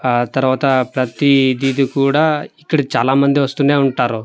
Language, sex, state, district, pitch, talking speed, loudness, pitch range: Telugu, male, Andhra Pradesh, Manyam, 135 Hz, 140 wpm, -15 LUFS, 130-140 Hz